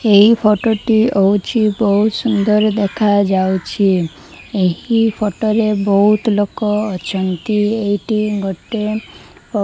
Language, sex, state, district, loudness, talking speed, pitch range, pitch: Odia, female, Odisha, Malkangiri, -15 LUFS, 100 wpm, 200-215 Hz, 210 Hz